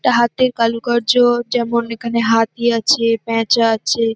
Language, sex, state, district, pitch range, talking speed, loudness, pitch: Bengali, female, West Bengal, North 24 Parganas, 230-240 Hz, 145 wpm, -16 LUFS, 235 Hz